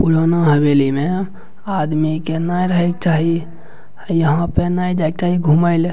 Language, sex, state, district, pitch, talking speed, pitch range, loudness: Maithili, male, Bihar, Madhepura, 165 Hz, 170 wpm, 155-175 Hz, -17 LUFS